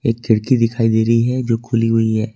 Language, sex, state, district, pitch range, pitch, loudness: Hindi, male, Jharkhand, Ranchi, 115-120 Hz, 115 Hz, -16 LUFS